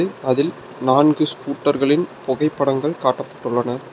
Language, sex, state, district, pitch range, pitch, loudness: Tamil, male, Tamil Nadu, Nilgiris, 130-150 Hz, 140 Hz, -19 LUFS